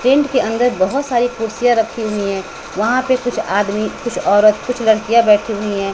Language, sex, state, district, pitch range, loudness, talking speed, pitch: Hindi, female, Bihar, West Champaran, 210-245 Hz, -16 LUFS, 200 wpm, 225 Hz